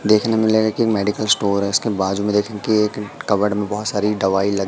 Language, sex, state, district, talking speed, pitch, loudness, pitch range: Hindi, male, Madhya Pradesh, Katni, 245 wpm, 105 Hz, -19 LUFS, 100-110 Hz